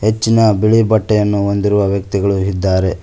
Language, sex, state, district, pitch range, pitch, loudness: Kannada, male, Karnataka, Koppal, 100-110 Hz, 100 Hz, -14 LUFS